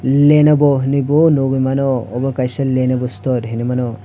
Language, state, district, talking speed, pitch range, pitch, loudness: Kokborok, Tripura, West Tripura, 165 wpm, 125-140 Hz, 130 Hz, -15 LUFS